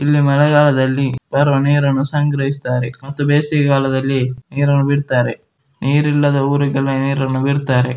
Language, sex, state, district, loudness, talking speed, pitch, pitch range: Kannada, male, Karnataka, Dakshina Kannada, -16 LUFS, 100 wpm, 140 Hz, 135-145 Hz